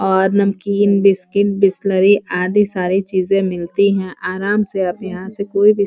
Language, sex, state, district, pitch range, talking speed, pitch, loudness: Hindi, female, Uttar Pradesh, Varanasi, 185-200 Hz, 175 wpm, 195 Hz, -16 LUFS